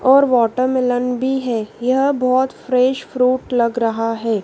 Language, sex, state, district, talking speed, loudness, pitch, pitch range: Hindi, female, Madhya Pradesh, Dhar, 150 wpm, -17 LUFS, 250 Hz, 235-260 Hz